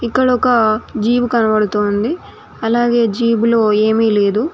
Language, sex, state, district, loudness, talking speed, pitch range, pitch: Telugu, female, Telangana, Mahabubabad, -15 LUFS, 130 wpm, 215-240 Hz, 230 Hz